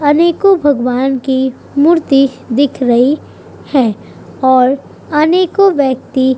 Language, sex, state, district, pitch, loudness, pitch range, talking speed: Hindi, female, Uttar Pradesh, Budaun, 275 Hz, -12 LUFS, 260-305 Hz, 105 wpm